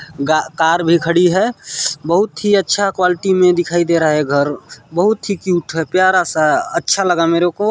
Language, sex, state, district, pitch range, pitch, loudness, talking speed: Hindi, male, Chhattisgarh, Balrampur, 165-195 Hz, 175 Hz, -15 LUFS, 185 wpm